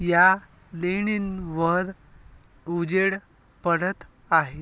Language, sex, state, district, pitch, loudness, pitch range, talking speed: Marathi, male, Maharashtra, Aurangabad, 175 Hz, -24 LUFS, 170-190 Hz, 65 wpm